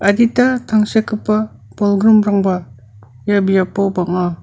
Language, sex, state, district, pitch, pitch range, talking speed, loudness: Garo, male, Meghalaya, North Garo Hills, 200 Hz, 180-215 Hz, 80 wpm, -15 LUFS